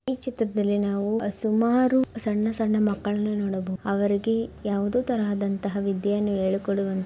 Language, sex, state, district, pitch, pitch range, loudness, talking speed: Kannada, female, Karnataka, Mysore, 205 Hz, 200-225 Hz, -25 LUFS, 120 wpm